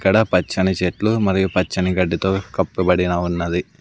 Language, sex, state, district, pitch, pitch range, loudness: Telugu, male, Andhra Pradesh, Sri Satya Sai, 90 Hz, 90-95 Hz, -19 LUFS